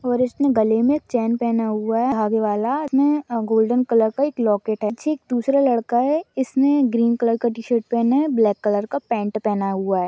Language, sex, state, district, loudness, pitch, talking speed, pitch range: Hindi, female, Chhattisgarh, Raigarh, -20 LUFS, 235 Hz, 225 wpm, 220-265 Hz